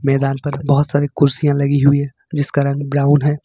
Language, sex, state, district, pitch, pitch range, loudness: Hindi, male, Jharkhand, Ranchi, 140 Hz, 140-145 Hz, -16 LUFS